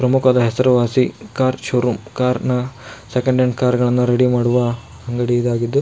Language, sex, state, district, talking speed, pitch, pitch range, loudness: Kannada, male, Karnataka, Shimoga, 145 wpm, 125 Hz, 120-130 Hz, -17 LUFS